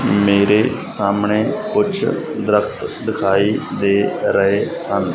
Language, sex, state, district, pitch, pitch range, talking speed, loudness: Punjabi, male, Punjab, Fazilka, 100 Hz, 100-110 Hz, 95 wpm, -17 LUFS